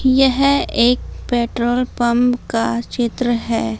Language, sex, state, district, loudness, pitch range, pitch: Hindi, female, Jharkhand, Palamu, -17 LUFS, 235-250 Hz, 240 Hz